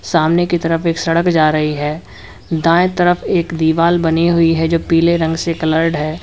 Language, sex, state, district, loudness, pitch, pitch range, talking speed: Hindi, male, Uttar Pradesh, Lalitpur, -15 LUFS, 165 Hz, 160-170 Hz, 200 wpm